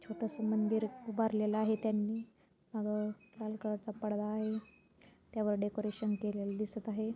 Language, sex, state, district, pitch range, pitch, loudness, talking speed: Marathi, female, Maharashtra, Sindhudurg, 210-220 Hz, 215 Hz, -37 LUFS, 125 wpm